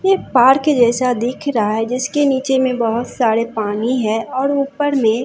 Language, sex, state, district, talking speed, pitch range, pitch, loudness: Hindi, female, Bihar, Katihar, 195 wpm, 230-275 Hz, 250 Hz, -16 LUFS